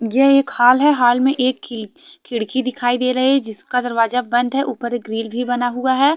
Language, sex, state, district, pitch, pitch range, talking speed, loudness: Hindi, female, Haryana, Charkhi Dadri, 250 Hz, 240-260 Hz, 235 wpm, -17 LUFS